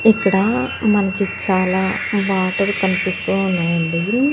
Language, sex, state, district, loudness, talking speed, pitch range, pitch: Telugu, female, Andhra Pradesh, Annamaya, -18 LUFS, 85 wpm, 185-205 Hz, 195 Hz